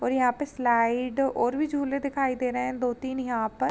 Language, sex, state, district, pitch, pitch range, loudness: Hindi, female, Uttar Pradesh, Jalaun, 255 Hz, 245-270 Hz, -27 LUFS